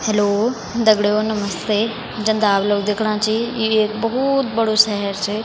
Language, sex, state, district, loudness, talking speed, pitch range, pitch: Garhwali, female, Uttarakhand, Tehri Garhwal, -18 LUFS, 165 wpm, 210-225 Hz, 215 Hz